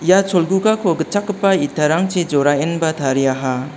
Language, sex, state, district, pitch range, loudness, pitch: Garo, male, Meghalaya, South Garo Hills, 145-190 Hz, -17 LUFS, 165 Hz